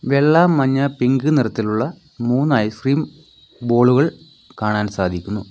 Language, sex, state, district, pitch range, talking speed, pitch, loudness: Malayalam, male, Kerala, Kollam, 110-140 Hz, 100 wpm, 130 Hz, -18 LUFS